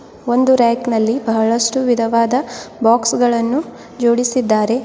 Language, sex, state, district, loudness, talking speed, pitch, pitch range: Kannada, female, Karnataka, Bidar, -15 LUFS, 85 wpm, 235 Hz, 230-250 Hz